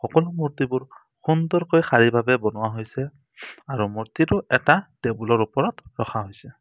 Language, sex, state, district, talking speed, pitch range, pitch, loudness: Assamese, male, Assam, Sonitpur, 125 wpm, 110-150 Hz, 130 Hz, -22 LUFS